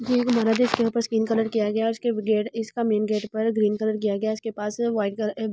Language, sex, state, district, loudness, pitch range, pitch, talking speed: Hindi, female, Delhi, New Delhi, -24 LUFS, 215-230 Hz, 220 Hz, 280 wpm